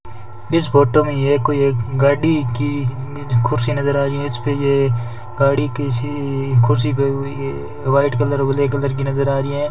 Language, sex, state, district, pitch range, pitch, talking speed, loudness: Hindi, male, Rajasthan, Bikaner, 130-145 Hz, 140 Hz, 190 wpm, -18 LUFS